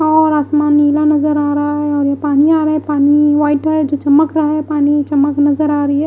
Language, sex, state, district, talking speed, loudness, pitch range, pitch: Hindi, female, Odisha, Malkangiri, 255 wpm, -13 LUFS, 290-305 Hz, 295 Hz